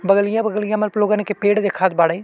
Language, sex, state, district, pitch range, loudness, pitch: Bhojpuri, male, Uttar Pradesh, Deoria, 195-210 Hz, -18 LUFS, 210 Hz